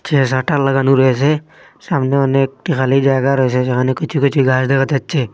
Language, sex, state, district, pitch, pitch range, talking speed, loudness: Bengali, male, Assam, Hailakandi, 135 Hz, 130-140 Hz, 170 wpm, -15 LUFS